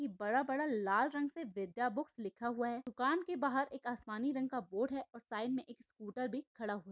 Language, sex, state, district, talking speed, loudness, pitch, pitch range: Hindi, female, Maharashtra, Aurangabad, 240 wpm, -39 LUFS, 250 Hz, 225-270 Hz